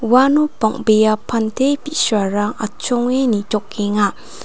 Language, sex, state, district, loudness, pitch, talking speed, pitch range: Garo, female, Meghalaya, North Garo Hills, -17 LUFS, 220 Hz, 80 wpm, 210-255 Hz